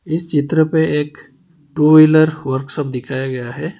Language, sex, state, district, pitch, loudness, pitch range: Hindi, male, Karnataka, Bangalore, 150 Hz, -15 LUFS, 140-160 Hz